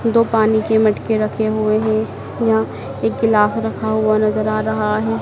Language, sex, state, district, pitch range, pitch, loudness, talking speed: Hindi, male, Madhya Pradesh, Dhar, 210-220 Hz, 215 Hz, -17 LUFS, 185 wpm